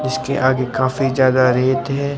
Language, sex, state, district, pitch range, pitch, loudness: Hindi, male, Rajasthan, Barmer, 130-140 Hz, 130 Hz, -17 LUFS